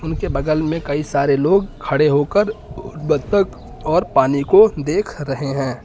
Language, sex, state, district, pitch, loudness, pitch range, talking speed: Hindi, male, Uttar Pradesh, Lucknow, 150 Hz, -17 LUFS, 140-165 Hz, 155 wpm